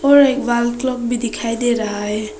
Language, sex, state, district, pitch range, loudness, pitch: Hindi, female, Arunachal Pradesh, Papum Pare, 220-255 Hz, -18 LUFS, 240 Hz